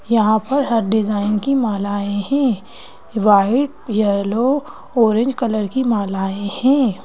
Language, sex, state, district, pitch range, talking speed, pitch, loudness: Hindi, female, Madhya Pradesh, Bhopal, 205-255 Hz, 120 wpm, 220 Hz, -18 LUFS